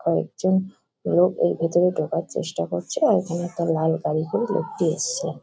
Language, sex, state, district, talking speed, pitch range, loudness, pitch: Bengali, female, West Bengal, Kolkata, 165 wpm, 160-180 Hz, -23 LUFS, 170 Hz